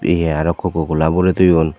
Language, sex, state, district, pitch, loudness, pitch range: Chakma, male, Tripura, Dhalai, 85 Hz, -16 LUFS, 80-90 Hz